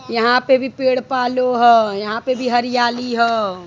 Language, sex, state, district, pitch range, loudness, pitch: Bhojpuri, female, Uttar Pradesh, Varanasi, 235-255 Hz, -16 LUFS, 245 Hz